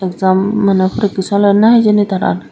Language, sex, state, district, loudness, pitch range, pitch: Chakma, female, Tripura, Dhalai, -12 LUFS, 185-205 Hz, 195 Hz